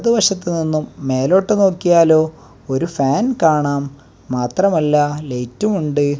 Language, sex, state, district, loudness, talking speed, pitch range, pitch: Malayalam, male, Kerala, Kasaragod, -17 LUFS, 105 wpm, 140-185 Hz, 155 Hz